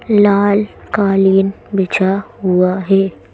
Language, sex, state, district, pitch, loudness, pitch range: Hindi, female, Madhya Pradesh, Bhopal, 195 Hz, -14 LUFS, 190-205 Hz